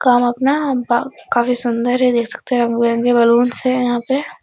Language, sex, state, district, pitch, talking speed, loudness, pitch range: Hindi, female, Bihar, Araria, 245 Hz, 190 wpm, -16 LUFS, 235-255 Hz